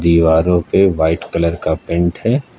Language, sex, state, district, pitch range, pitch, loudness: Hindi, male, Uttar Pradesh, Lucknow, 80-90 Hz, 85 Hz, -15 LUFS